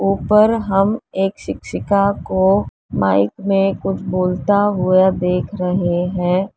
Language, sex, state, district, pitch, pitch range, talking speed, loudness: Hindi, female, Uttar Pradesh, Lalitpur, 190 Hz, 180-200 Hz, 120 wpm, -17 LUFS